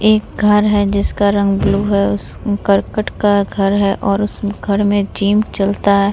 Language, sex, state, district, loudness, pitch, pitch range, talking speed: Hindi, female, Bihar, Vaishali, -15 LUFS, 200 Hz, 200-205 Hz, 185 wpm